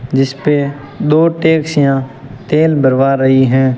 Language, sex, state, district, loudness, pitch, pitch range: Hindi, male, Rajasthan, Bikaner, -12 LUFS, 135 Hz, 130-150 Hz